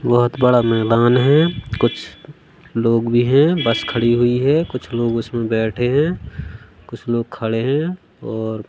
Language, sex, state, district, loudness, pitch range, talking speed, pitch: Hindi, male, Madhya Pradesh, Katni, -17 LUFS, 115-130 Hz, 150 wpm, 120 Hz